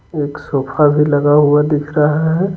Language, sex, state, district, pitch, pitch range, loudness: Hindi, male, Bihar, Patna, 150 Hz, 145-155 Hz, -14 LUFS